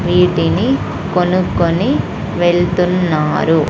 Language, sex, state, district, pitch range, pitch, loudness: Telugu, female, Andhra Pradesh, Sri Satya Sai, 170-180 Hz, 175 Hz, -15 LUFS